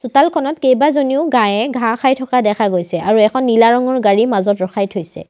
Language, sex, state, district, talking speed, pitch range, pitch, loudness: Assamese, female, Assam, Sonitpur, 180 wpm, 205-260 Hz, 235 Hz, -14 LUFS